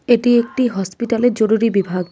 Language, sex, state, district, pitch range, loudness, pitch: Bengali, female, West Bengal, Cooch Behar, 195-240 Hz, -16 LUFS, 230 Hz